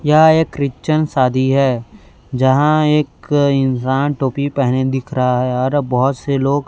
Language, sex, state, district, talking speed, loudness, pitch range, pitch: Hindi, male, Chhattisgarh, Raipur, 155 wpm, -16 LUFS, 130-145 Hz, 135 Hz